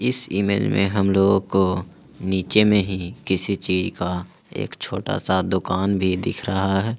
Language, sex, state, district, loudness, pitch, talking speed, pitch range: Hindi, male, Jharkhand, Ranchi, -22 LUFS, 95 Hz, 170 wpm, 95-100 Hz